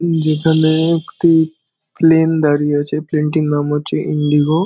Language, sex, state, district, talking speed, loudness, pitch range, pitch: Bengali, male, West Bengal, Dakshin Dinajpur, 130 wpm, -15 LUFS, 150-160 Hz, 155 Hz